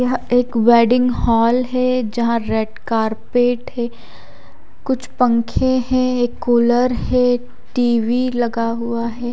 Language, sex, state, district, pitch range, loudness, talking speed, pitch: Hindi, female, Odisha, Khordha, 235-250 Hz, -17 LUFS, 120 wpm, 245 Hz